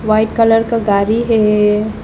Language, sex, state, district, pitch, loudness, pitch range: Hindi, female, Arunachal Pradesh, Papum Pare, 220 Hz, -13 LUFS, 210-225 Hz